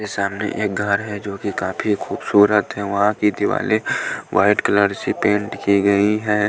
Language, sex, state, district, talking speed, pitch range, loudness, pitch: Hindi, male, Punjab, Pathankot, 175 wpm, 100-105 Hz, -19 LUFS, 105 Hz